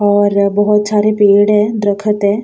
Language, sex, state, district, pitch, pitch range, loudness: Hindi, female, Uttar Pradesh, Jalaun, 205 Hz, 200-210 Hz, -12 LUFS